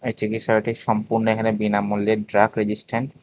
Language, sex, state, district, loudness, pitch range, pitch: Bengali, male, Tripura, West Tripura, -22 LUFS, 105-115 Hz, 110 Hz